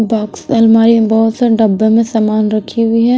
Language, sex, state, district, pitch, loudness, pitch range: Hindi, female, Bihar, West Champaran, 225 Hz, -11 LUFS, 220-230 Hz